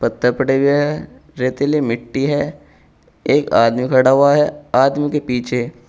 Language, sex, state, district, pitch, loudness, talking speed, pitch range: Hindi, male, Uttar Pradesh, Saharanpur, 135 Hz, -16 LUFS, 155 wpm, 125-145 Hz